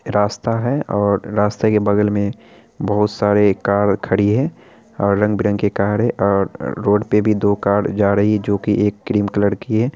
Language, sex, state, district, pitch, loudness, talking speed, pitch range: Hindi, male, Bihar, Araria, 105 Hz, -17 LUFS, 195 wpm, 100-105 Hz